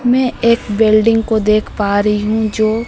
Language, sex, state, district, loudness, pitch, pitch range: Hindi, female, Bihar, Katihar, -14 LUFS, 220 Hz, 215-235 Hz